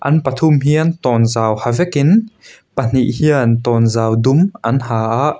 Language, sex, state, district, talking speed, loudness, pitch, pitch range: Mizo, male, Mizoram, Aizawl, 145 wpm, -14 LUFS, 135 Hz, 115-155 Hz